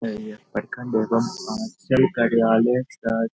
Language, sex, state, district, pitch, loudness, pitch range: Hindi, male, Bihar, Saharsa, 115 Hz, -22 LUFS, 115-130 Hz